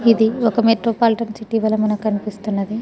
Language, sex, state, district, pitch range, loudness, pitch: Telugu, female, Telangana, Nalgonda, 215-230 Hz, -18 LUFS, 220 Hz